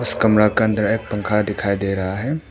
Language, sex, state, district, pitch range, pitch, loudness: Hindi, male, Arunachal Pradesh, Papum Pare, 100-110 Hz, 105 Hz, -19 LUFS